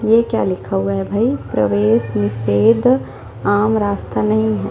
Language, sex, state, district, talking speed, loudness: Hindi, female, Chhattisgarh, Jashpur, 155 wpm, -17 LUFS